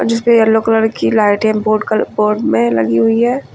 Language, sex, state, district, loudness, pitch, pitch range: Hindi, female, Uttar Pradesh, Lucknow, -13 LUFS, 215 Hz, 205-225 Hz